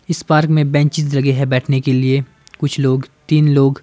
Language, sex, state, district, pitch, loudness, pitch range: Hindi, male, Himachal Pradesh, Shimla, 140 Hz, -15 LUFS, 135-150 Hz